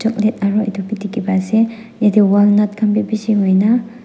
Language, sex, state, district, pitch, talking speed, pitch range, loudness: Nagamese, female, Nagaland, Dimapur, 215 Hz, 190 wpm, 205-225 Hz, -15 LUFS